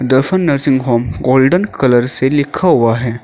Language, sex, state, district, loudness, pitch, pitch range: Hindi, male, Uttar Pradesh, Shamli, -12 LUFS, 130 Hz, 120-140 Hz